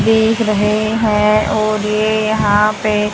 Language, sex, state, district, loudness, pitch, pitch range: Hindi, female, Haryana, Jhajjar, -14 LUFS, 215 Hz, 210-220 Hz